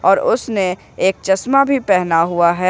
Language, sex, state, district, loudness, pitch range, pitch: Hindi, male, Jharkhand, Ranchi, -16 LUFS, 180-225 Hz, 190 Hz